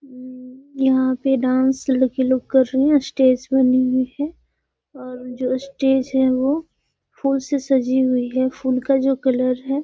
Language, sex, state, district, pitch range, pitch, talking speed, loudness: Hindi, female, Bihar, Gaya, 255-270 Hz, 260 Hz, 175 wpm, -19 LUFS